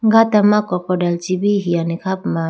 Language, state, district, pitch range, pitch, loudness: Idu Mishmi, Arunachal Pradesh, Lower Dibang Valley, 175-210 Hz, 185 Hz, -17 LUFS